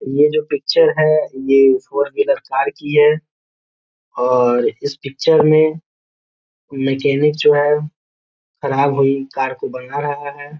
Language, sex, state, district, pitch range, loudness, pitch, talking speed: Hindi, male, Bihar, Gopalganj, 135-155 Hz, -16 LUFS, 145 Hz, 140 wpm